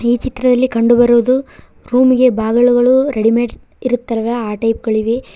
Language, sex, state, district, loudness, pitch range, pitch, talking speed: Kannada, female, Karnataka, Koppal, -14 LUFS, 230-255 Hz, 240 Hz, 135 wpm